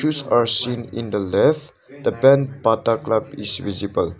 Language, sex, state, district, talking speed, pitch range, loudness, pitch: English, male, Nagaland, Dimapur, 170 wpm, 110-135 Hz, -20 LUFS, 115 Hz